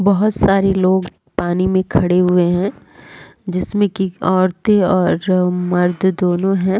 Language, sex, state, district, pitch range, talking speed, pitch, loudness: Hindi, female, Bihar, Sitamarhi, 180-195 Hz, 140 wpm, 185 Hz, -16 LUFS